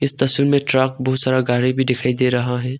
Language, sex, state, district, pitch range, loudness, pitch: Hindi, male, Arunachal Pradesh, Longding, 125-130 Hz, -17 LUFS, 130 Hz